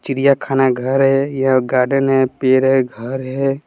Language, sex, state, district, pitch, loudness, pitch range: Hindi, male, Bihar, West Champaran, 135 Hz, -16 LUFS, 130-135 Hz